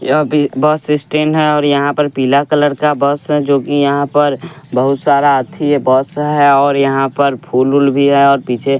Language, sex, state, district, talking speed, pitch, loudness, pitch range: Hindi, male, Bihar, West Champaran, 210 wpm, 140 Hz, -13 LUFS, 140-150 Hz